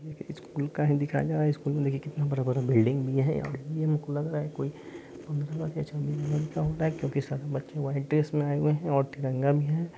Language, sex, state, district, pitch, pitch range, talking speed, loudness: Bhojpuri, male, Bihar, Saran, 145 Hz, 140-155 Hz, 210 wpm, -29 LUFS